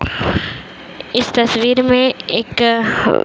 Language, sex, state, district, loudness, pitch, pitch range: Hindi, female, Uttar Pradesh, Varanasi, -15 LUFS, 240 Hz, 230-255 Hz